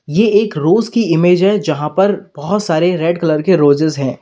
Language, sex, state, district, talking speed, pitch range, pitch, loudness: Hindi, male, Uttar Pradesh, Lalitpur, 215 wpm, 155-200 Hz, 175 Hz, -13 LUFS